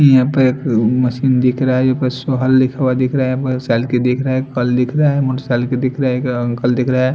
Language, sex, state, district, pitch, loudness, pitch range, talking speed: Hindi, male, Punjab, Fazilka, 130 Hz, -16 LUFS, 125-130 Hz, 185 wpm